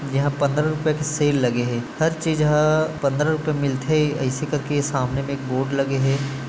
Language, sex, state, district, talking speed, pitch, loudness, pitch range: Chhattisgarhi, male, Chhattisgarh, Bilaspur, 205 wpm, 145 Hz, -22 LUFS, 135-155 Hz